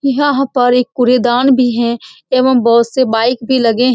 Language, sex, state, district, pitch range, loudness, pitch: Hindi, female, Bihar, Saran, 235-260 Hz, -12 LUFS, 250 Hz